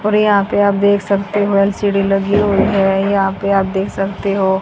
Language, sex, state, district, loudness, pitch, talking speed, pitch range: Hindi, female, Haryana, Jhajjar, -15 LUFS, 200 Hz, 205 wpm, 195-205 Hz